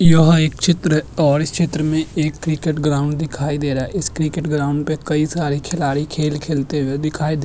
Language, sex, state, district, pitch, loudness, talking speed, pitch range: Hindi, male, Maharashtra, Chandrapur, 155 Hz, -18 LUFS, 215 wpm, 145-160 Hz